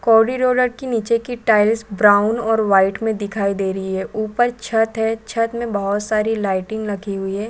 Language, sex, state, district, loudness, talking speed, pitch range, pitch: Hindi, female, Chhattisgarh, Balrampur, -19 LUFS, 190 wpm, 200-230 Hz, 220 Hz